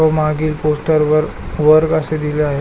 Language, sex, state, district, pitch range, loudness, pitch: Marathi, male, Maharashtra, Pune, 150-155 Hz, -15 LUFS, 155 Hz